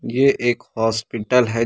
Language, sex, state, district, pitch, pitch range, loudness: Hindi, male, Uttar Pradesh, Ghazipur, 115 Hz, 115-125 Hz, -20 LUFS